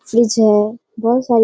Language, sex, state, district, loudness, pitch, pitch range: Hindi, female, Bihar, Darbhanga, -15 LUFS, 230 Hz, 220-235 Hz